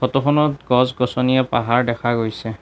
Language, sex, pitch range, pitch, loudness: Assamese, male, 120-130 Hz, 125 Hz, -18 LUFS